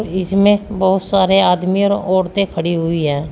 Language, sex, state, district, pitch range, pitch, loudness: Hindi, female, Uttar Pradesh, Shamli, 175-195 Hz, 190 Hz, -15 LUFS